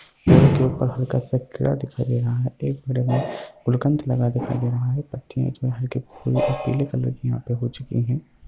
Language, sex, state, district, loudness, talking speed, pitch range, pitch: Hindi, male, Bihar, Lakhisarai, -23 LUFS, 210 wpm, 125-135 Hz, 130 Hz